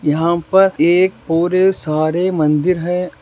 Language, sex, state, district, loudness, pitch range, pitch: Hindi, male, Rajasthan, Nagaur, -15 LUFS, 160-185 Hz, 170 Hz